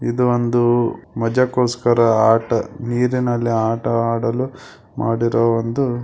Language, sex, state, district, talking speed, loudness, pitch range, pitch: Kannada, male, Karnataka, Belgaum, 100 wpm, -18 LUFS, 115-125 Hz, 120 Hz